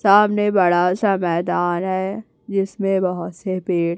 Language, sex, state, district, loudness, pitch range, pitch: Hindi, female, Chhattisgarh, Raipur, -19 LUFS, 175-200 Hz, 190 Hz